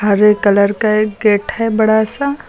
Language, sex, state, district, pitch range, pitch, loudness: Hindi, female, Uttar Pradesh, Lucknow, 210-220 Hz, 215 Hz, -13 LUFS